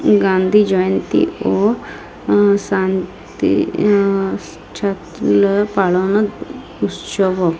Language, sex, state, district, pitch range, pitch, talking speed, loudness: Bengali, female, Odisha, Malkangiri, 185-205 Hz, 195 Hz, 70 wpm, -16 LUFS